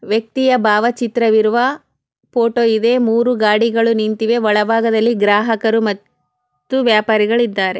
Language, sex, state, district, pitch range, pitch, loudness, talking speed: Kannada, female, Karnataka, Chamarajanagar, 210-235 Hz, 225 Hz, -15 LUFS, 125 wpm